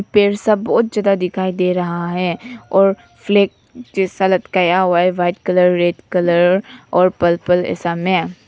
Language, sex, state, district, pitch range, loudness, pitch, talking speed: Hindi, female, Nagaland, Kohima, 175-195 Hz, -16 LUFS, 185 Hz, 150 wpm